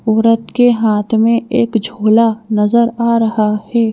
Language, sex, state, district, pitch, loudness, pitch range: Hindi, female, Madhya Pradesh, Bhopal, 225 Hz, -13 LUFS, 220-235 Hz